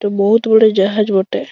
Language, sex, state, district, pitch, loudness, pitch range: Bengali, female, West Bengal, Malda, 210 Hz, -13 LUFS, 200-220 Hz